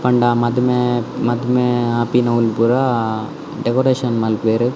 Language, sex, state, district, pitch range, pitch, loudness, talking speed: Tulu, male, Karnataka, Dakshina Kannada, 115-125 Hz, 120 Hz, -17 LUFS, 90 wpm